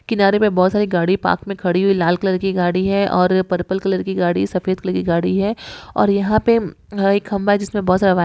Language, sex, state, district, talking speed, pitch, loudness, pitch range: Hindi, female, West Bengal, Jalpaiguri, 220 wpm, 190 Hz, -17 LUFS, 185-200 Hz